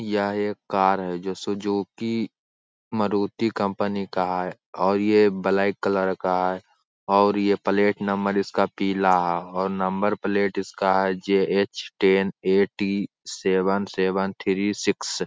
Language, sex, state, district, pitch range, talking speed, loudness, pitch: Hindi, male, Jharkhand, Jamtara, 95-100 Hz, 155 wpm, -23 LUFS, 100 Hz